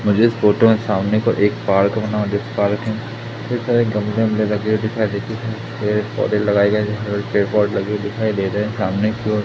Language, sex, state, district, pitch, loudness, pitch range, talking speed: Hindi, male, Madhya Pradesh, Katni, 105 Hz, -18 LUFS, 105-110 Hz, 170 wpm